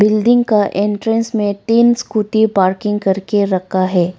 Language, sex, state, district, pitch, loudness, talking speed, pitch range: Hindi, female, Arunachal Pradesh, Lower Dibang Valley, 210 Hz, -15 LUFS, 145 wpm, 190-220 Hz